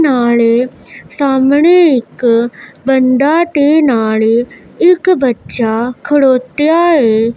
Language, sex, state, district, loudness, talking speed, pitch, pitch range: Punjabi, female, Punjab, Pathankot, -11 LUFS, 80 wpm, 260 Hz, 235-300 Hz